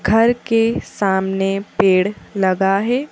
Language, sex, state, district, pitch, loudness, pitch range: Hindi, female, Madhya Pradesh, Bhopal, 200 Hz, -17 LUFS, 190-225 Hz